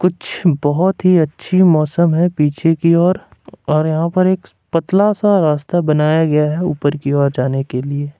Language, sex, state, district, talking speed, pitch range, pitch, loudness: Hindi, male, Jharkhand, Ranchi, 175 wpm, 150-180 Hz, 165 Hz, -15 LUFS